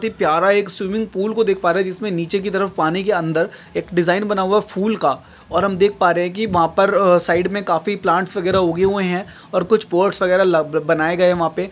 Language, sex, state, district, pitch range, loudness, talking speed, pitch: Hindi, male, Maharashtra, Nagpur, 175-200 Hz, -18 LUFS, 250 wpm, 190 Hz